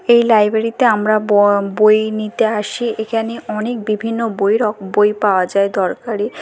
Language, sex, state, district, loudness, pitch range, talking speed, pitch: Bengali, female, West Bengal, North 24 Parganas, -16 LUFS, 210-230 Hz, 160 wpm, 215 Hz